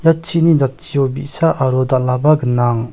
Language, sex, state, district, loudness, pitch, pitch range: Garo, male, Meghalaya, South Garo Hills, -15 LUFS, 135 Hz, 130-160 Hz